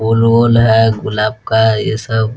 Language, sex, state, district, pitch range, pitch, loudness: Hindi, male, Bihar, Muzaffarpur, 110-115 Hz, 110 Hz, -12 LUFS